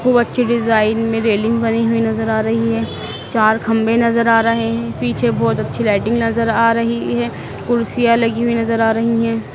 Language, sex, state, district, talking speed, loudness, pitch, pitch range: Hindi, female, Madhya Pradesh, Dhar, 200 wpm, -16 LUFS, 230 Hz, 220-230 Hz